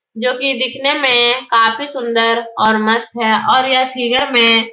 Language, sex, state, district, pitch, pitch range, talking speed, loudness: Hindi, female, Bihar, Supaul, 240 Hz, 230-260 Hz, 175 wpm, -13 LUFS